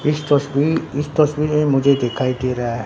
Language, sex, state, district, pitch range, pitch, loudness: Hindi, male, Bihar, Katihar, 130-150 Hz, 145 Hz, -18 LUFS